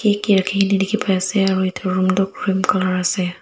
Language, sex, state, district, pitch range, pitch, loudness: Nagamese, female, Nagaland, Dimapur, 185-195 Hz, 190 Hz, -18 LUFS